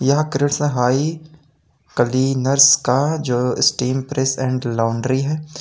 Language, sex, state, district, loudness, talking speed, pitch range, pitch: Hindi, male, Uttar Pradesh, Lalitpur, -18 LUFS, 115 wpm, 125-145 Hz, 135 Hz